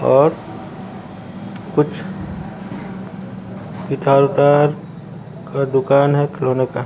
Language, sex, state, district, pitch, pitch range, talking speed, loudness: Hindi, male, Bihar, Kaimur, 145 Hz, 140-165 Hz, 80 wpm, -17 LUFS